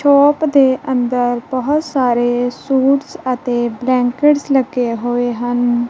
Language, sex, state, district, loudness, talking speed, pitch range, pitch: Punjabi, female, Punjab, Kapurthala, -15 LUFS, 110 wpm, 245-275 Hz, 255 Hz